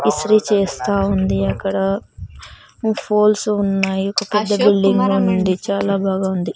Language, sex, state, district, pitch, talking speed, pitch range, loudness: Telugu, female, Andhra Pradesh, Sri Satya Sai, 195 Hz, 120 wpm, 195-205 Hz, -17 LUFS